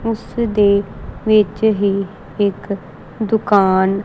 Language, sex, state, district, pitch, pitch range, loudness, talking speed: Punjabi, female, Punjab, Kapurthala, 205 Hz, 195-220 Hz, -17 LUFS, 75 wpm